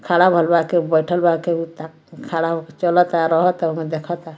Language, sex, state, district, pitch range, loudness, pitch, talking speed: Bhojpuri, female, Bihar, Muzaffarpur, 160-175 Hz, -18 LUFS, 165 Hz, 180 wpm